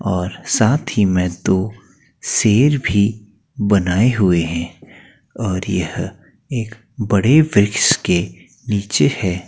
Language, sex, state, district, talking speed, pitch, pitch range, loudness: Hindi, male, Uttar Pradesh, Gorakhpur, 115 wpm, 100 Hz, 90-110 Hz, -17 LUFS